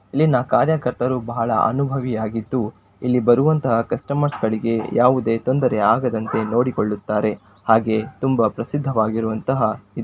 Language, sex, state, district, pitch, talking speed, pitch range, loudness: Kannada, male, Karnataka, Shimoga, 120 Hz, 100 wpm, 110-130 Hz, -20 LUFS